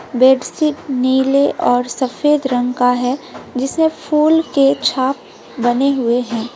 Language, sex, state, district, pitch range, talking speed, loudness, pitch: Hindi, female, West Bengal, Alipurduar, 245-280 Hz, 135 wpm, -16 LUFS, 260 Hz